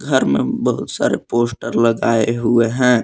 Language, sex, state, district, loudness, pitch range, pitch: Hindi, male, Jharkhand, Palamu, -17 LUFS, 115-120 Hz, 115 Hz